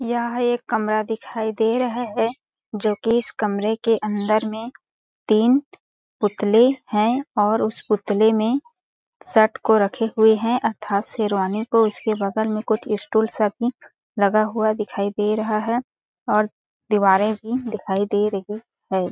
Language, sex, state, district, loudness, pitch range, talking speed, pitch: Hindi, female, Chhattisgarh, Balrampur, -21 LUFS, 210-235 Hz, 155 wpm, 220 Hz